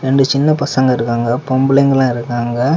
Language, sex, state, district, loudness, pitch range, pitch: Tamil, male, Tamil Nadu, Kanyakumari, -14 LUFS, 120-135 Hz, 130 Hz